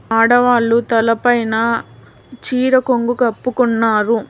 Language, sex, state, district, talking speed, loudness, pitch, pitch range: Telugu, female, Telangana, Hyderabad, 70 wpm, -15 LUFS, 235 Hz, 230-245 Hz